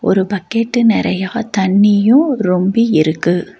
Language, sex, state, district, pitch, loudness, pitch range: Tamil, female, Tamil Nadu, Nilgiris, 205 Hz, -14 LUFS, 185-230 Hz